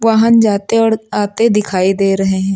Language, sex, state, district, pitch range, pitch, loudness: Hindi, female, Uttar Pradesh, Lucknow, 195-225 Hz, 210 Hz, -13 LUFS